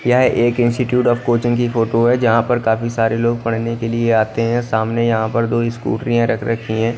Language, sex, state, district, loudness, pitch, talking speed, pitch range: Hindi, male, Punjab, Kapurthala, -17 LUFS, 115 Hz, 225 wpm, 115-120 Hz